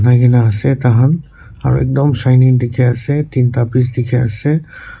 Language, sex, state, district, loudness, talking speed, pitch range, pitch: Nagamese, male, Nagaland, Kohima, -13 LUFS, 130 wpm, 120-140 Hz, 125 Hz